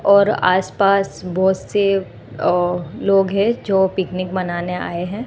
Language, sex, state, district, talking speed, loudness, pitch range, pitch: Hindi, female, Gujarat, Gandhinagar, 150 wpm, -18 LUFS, 180-195 Hz, 190 Hz